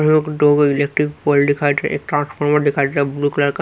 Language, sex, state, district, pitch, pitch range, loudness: Hindi, male, Haryana, Rohtak, 145 Hz, 145-150 Hz, -17 LUFS